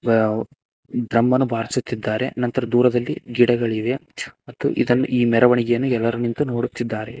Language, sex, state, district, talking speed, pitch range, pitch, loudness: Kannada, male, Karnataka, Koppal, 115 wpm, 115-125 Hz, 120 Hz, -20 LUFS